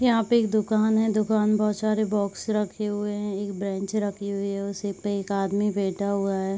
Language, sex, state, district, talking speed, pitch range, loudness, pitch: Hindi, female, Bihar, Saharsa, 230 wpm, 200-215 Hz, -25 LUFS, 205 Hz